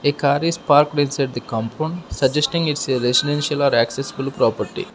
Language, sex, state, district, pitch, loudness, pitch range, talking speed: English, male, Arunachal Pradesh, Lower Dibang Valley, 145 Hz, -19 LUFS, 135-150 Hz, 170 wpm